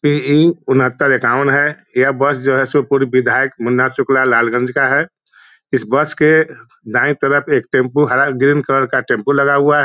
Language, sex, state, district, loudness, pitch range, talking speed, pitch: Hindi, male, Bihar, Muzaffarpur, -14 LUFS, 130-145 Hz, 190 wpm, 140 Hz